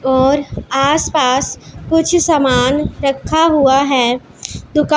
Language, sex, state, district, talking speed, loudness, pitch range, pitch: Hindi, female, Punjab, Pathankot, 110 wpm, -14 LUFS, 265-305 Hz, 275 Hz